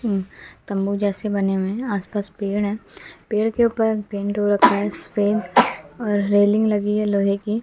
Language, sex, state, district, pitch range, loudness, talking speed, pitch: Hindi, female, Bihar, West Champaran, 200-215 Hz, -21 LUFS, 175 wpm, 205 Hz